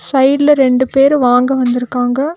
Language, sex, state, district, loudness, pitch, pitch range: Tamil, female, Tamil Nadu, Nilgiris, -12 LUFS, 265 Hz, 250-280 Hz